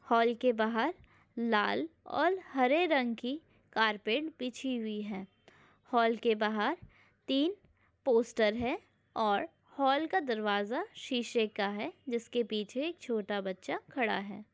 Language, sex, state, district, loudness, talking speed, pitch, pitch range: Hindi, female, Maharashtra, Pune, -33 LUFS, 130 wpm, 235 Hz, 215-270 Hz